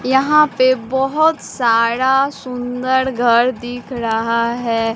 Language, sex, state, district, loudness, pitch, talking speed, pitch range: Hindi, female, Bihar, Katihar, -16 LUFS, 250 Hz, 110 wpm, 235-265 Hz